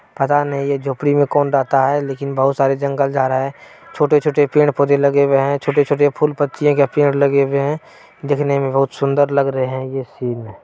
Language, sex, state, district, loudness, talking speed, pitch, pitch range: Maithili, male, Bihar, Purnia, -17 LUFS, 210 wpm, 140 Hz, 135-145 Hz